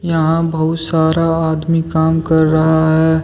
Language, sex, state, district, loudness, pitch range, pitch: Hindi, male, Jharkhand, Deoghar, -14 LUFS, 160-165 Hz, 160 Hz